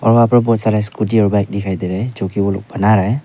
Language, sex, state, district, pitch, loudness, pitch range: Hindi, male, Arunachal Pradesh, Papum Pare, 105 Hz, -16 LUFS, 100-115 Hz